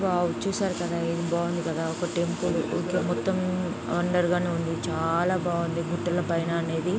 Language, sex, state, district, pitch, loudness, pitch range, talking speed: Telugu, female, Andhra Pradesh, Chittoor, 175 Hz, -27 LUFS, 170-180 Hz, 155 wpm